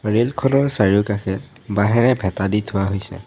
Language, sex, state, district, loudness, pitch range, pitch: Assamese, male, Assam, Sonitpur, -19 LUFS, 95-125 Hz, 105 Hz